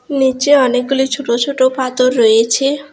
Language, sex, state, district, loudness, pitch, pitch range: Bengali, female, West Bengal, Alipurduar, -13 LUFS, 260 Hz, 250-280 Hz